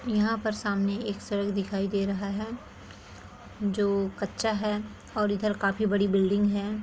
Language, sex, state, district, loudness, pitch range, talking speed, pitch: Hindi, female, Jharkhand, Sahebganj, -28 LUFS, 195-210 Hz, 160 wpm, 200 Hz